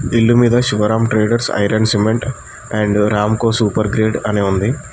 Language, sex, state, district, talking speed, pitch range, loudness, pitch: Telugu, male, Telangana, Mahabubabad, 160 wpm, 105-115 Hz, -15 LUFS, 110 Hz